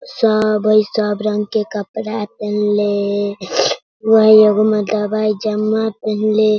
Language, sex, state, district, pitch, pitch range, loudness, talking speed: Hindi, female, Bihar, Sitamarhi, 215 Hz, 210-215 Hz, -16 LUFS, 100 wpm